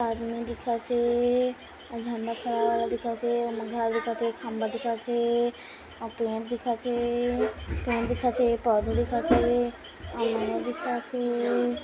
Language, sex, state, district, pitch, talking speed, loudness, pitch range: Hindi, female, Chhattisgarh, Kabirdham, 235 Hz, 140 wpm, -28 LUFS, 230-240 Hz